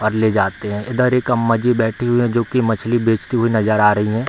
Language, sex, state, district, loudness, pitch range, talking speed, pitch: Hindi, male, Bihar, Bhagalpur, -17 LUFS, 110-120 Hz, 280 wpm, 115 Hz